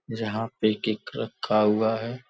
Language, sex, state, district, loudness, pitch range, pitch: Hindi, male, Uttar Pradesh, Gorakhpur, -26 LUFS, 110-115 Hz, 110 Hz